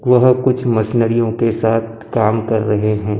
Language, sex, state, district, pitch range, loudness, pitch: Hindi, male, Maharashtra, Gondia, 110-120 Hz, -16 LUFS, 115 Hz